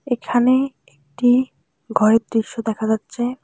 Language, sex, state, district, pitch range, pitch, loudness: Bengali, female, West Bengal, Alipurduar, 220-250 Hz, 235 Hz, -19 LUFS